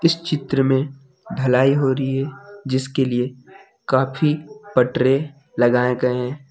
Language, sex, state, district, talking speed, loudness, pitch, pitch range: Hindi, male, Jharkhand, Deoghar, 130 wpm, -20 LUFS, 135 Hz, 130-150 Hz